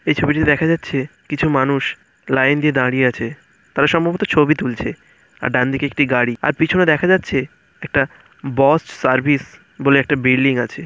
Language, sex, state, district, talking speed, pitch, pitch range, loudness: Bengali, female, West Bengal, Purulia, 150 wpm, 145 Hz, 130-155 Hz, -17 LUFS